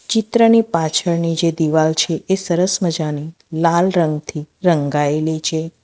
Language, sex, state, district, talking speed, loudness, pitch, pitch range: Gujarati, female, Gujarat, Valsad, 125 wpm, -17 LUFS, 165 Hz, 155-175 Hz